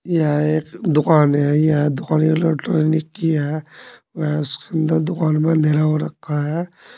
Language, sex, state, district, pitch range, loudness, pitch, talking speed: Hindi, male, Uttar Pradesh, Saharanpur, 150-160 Hz, -18 LUFS, 155 Hz, 145 wpm